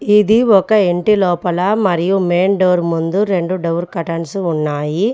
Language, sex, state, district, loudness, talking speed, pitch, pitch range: Telugu, female, Telangana, Mahabubabad, -15 LUFS, 140 wpm, 185 Hz, 170-205 Hz